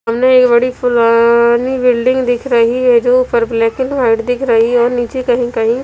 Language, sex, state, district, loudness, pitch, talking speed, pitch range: Hindi, female, Punjab, Fazilka, -12 LUFS, 245 Hz, 205 wpm, 235-255 Hz